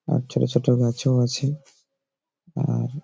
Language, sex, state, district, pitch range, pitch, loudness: Bengali, male, West Bengal, Malda, 125-150 Hz, 135 Hz, -23 LUFS